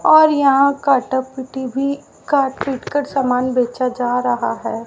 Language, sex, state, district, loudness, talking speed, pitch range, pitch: Hindi, female, Haryana, Rohtak, -17 LUFS, 160 wpm, 250-280 Hz, 265 Hz